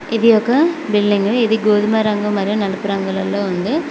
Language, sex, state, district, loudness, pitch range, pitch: Telugu, female, Telangana, Mahabubabad, -16 LUFS, 200-230 Hz, 210 Hz